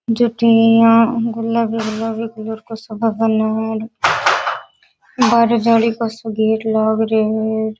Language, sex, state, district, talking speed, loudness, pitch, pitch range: Rajasthani, female, Rajasthan, Nagaur, 125 wpm, -16 LUFS, 225 Hz, 220-230 Hz